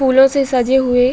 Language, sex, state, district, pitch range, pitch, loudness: Hindi, female, Uttar Pradesh, Budaun, 250-265 Hz, 260 Hz, -14 LUFS